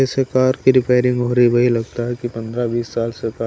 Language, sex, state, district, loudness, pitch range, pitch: Hindi, male, Maharashtra, Washim, -18 LUFS, 120-130 Hz, 120 Hz